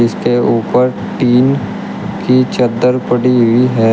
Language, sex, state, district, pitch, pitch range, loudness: Hindi, male, Uttar Pradesh, Shamli, 125 Hz, 120-130 Hz, -13 LUFS